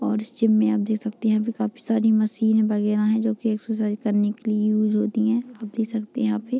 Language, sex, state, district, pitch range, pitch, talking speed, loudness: Hindi, female, Bihar, Gopalganj, 215-225 Hz, 220 Hz, 265 wpm, -23 LUFS